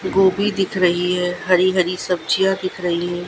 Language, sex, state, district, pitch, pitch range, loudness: Hindi, female, Gujarat, Gandhinagar, 180 Hz, 180-190 Hz, -19 LUFS